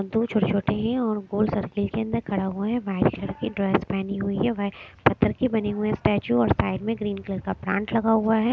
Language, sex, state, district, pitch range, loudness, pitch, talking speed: Hindi, female, Maharashtra, Mumbai Suburban, 195-220 Hz, -25 LUFS, 205 Hz, 230 wpm